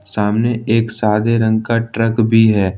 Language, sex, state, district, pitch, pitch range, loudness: Hindi, male, Jharkhand, Ranchi, 110 Hz, 105-115 Hz, -15 LUFS